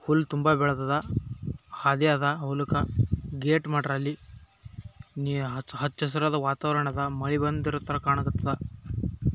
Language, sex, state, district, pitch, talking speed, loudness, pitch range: Kannada, male, Karnataka, Bijapur, 140 Hz, 95 wpm, -28 LUFS, 135-150 Hz